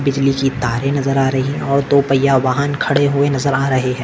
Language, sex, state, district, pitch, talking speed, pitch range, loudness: Hindi, male, Maharashtra, Solapur, 135 Hz, 250 wpm, 135-140 Hz, -16 LUFS